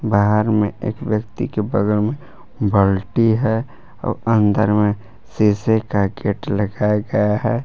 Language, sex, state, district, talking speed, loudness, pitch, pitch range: Hindi, male, Jharkhand, Palamu, 140 wpm, -19 LUFS, 105 Hz, 105-110 Hz